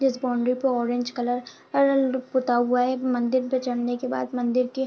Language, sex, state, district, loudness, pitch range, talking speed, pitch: Hindi, female, Jharkhand, Jamtara, -24 LUFS, 245-260 Hz, 220 wpm, 250 Hz